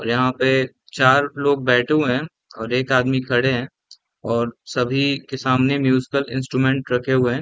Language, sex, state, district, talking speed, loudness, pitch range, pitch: Hindi, male, Chhattisgarh, Raigarh, 195 wpm, -19 LUFS, 125-135 Hz, 130 Hz